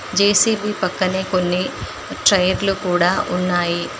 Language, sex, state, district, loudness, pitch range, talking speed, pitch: Telugu, female, Telangana, Mahabubabad, -18 LUFS, 180-200 Hz, 90 wpm, 185 Hz